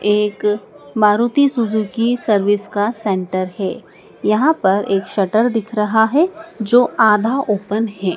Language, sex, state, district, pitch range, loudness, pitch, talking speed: Hindi, female, Madhya Pradesh, Dhar, 205-230 Hz, -17 LUFS, 215 Hz, 130 wpm